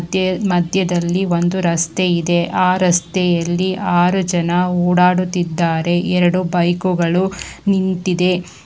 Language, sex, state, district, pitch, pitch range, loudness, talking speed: Kannada, female, Karnataka, Bangalore, 180 Hz, 175-185 Hz, -16 LUFS, 90 wpm